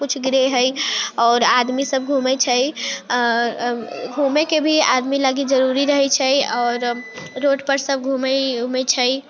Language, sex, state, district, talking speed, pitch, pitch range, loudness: Maithili, female, Bihar, Sitamarhi, 155 wpm, 265 Hz, 250-275 Hz, -18 LUFS